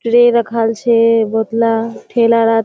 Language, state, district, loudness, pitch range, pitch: Surjapuri, Bihar, Kishanganj, -13 LUFS, 225-230 Hz, 230 Hz